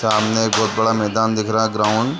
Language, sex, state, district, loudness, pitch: Hindi, male, Chhattisgarh, Raigarh, -18 LUFS, 110 Hz